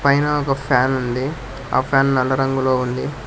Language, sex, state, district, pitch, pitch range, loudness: Telugu, male, Telangana, Hyderabad, 135 Hz, 130-135 Hz, -19 LUFS